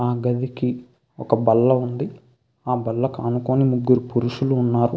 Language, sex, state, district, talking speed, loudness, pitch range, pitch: Telugu, male, Andhra Pradesh, Krishna, 135 wpm, -21 LUFS, 120-130 Hz, 125 Hz